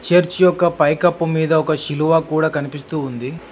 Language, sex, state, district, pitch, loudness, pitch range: Telugu, male, Telangana, Hyderabad, 160 Hz, -17 LUFS, 150-170 Hz